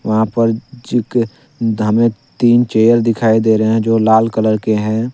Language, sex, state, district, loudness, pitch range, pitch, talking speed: Hindi, male, Jharkhand, Deoghar, -14 LUFS, 110-120 Hz, 115 Hz, 150 wpm